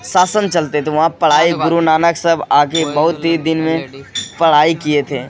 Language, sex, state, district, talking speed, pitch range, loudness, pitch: Hindi, male, Bihar, Kishanganj, 190 wpm, 150-165 Hz, -14 LUFS, 160 Hz